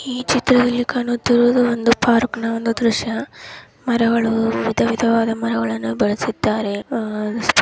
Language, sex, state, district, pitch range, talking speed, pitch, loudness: Kannada, male, Karnataka, Dharwad, 225-245 Hz, 100 wpm, 230 Hz, -18 LUFS